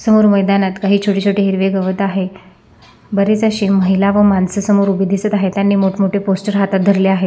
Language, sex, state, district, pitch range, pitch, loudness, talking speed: Marathi, female, Maharashtra, Sindhudurg, 190-200 Hz, 195 Hz, -14 LUFS, 190 wpm